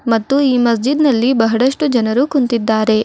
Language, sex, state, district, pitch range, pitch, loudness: Kannada, female, Karnataka, Bidar, 225-270 Hz, 245 Hz, -14 LUFS